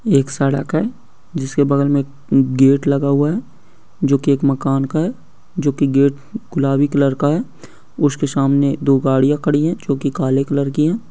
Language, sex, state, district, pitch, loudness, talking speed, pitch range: Hindi, male, Bihar, Saran, 140 Hz, -17 LUFS, 190 wpm, 140-150 Hz